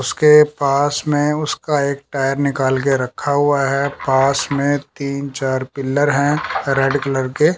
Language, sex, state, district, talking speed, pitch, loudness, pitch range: Hindi, male, Chandigarh, Chandigarh, 160 wpm, 140 Hz, -17 LUFS, 135-145 Hz